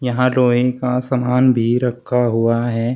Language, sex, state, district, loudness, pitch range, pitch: Hindi, male, Uttar Pradesh, Shamli, -17 LUFS, 120-125 Hz, 125 Hz